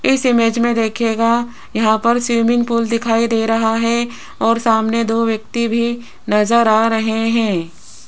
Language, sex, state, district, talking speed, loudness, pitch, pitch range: Hindi, female, Rajasthan, Jaipur, 155 wpm, -16 LUFS, 230 Hz, 225-235 Hz